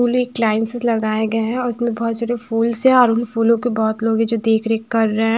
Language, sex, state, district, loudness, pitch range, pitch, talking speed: Hindi, female, Himachal Pradesh, Shimla, -18 LUFS, 225-235 Hz, 230 Hz, 280 wpm